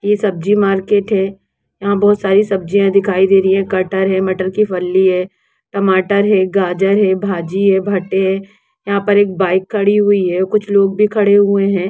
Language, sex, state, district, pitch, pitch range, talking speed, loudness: Hindi, female, Jharkhand, Jamtara, 195 Hz, 190-205 Hz, 195 wpm, -14 LUFS